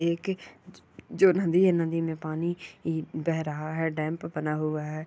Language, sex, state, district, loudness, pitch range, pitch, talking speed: Hindi, female, Bihar, Jamui, -28 LUFS, 155-170 Hz, 160 Hz, 165 wpm